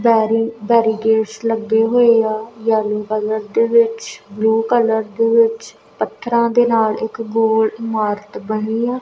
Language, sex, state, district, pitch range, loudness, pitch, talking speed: Punjabi, female, Punjab, Kapurthala, 220-230 Hz, -17 LUFS, 225 Hz, 140 wpm